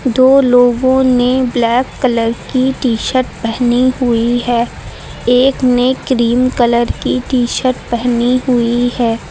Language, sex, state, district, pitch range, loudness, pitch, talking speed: Hindi, female, Uttar Pradesh, Lucknow, 240-255 Hz, -13 LUFS, 245 Hz, 120 wpm